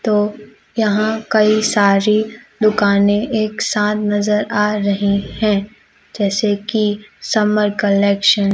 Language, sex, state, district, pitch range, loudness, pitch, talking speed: Hindi, male, Madhya Pradesh, Umaria, 200-215 Hz, -16 LUFS, 210 Hz, 110 wpm